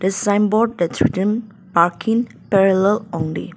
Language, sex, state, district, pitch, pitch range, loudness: English, female, Nagaland, Dimapur, 195 Hz, 175-210 Hz, -18 LUFS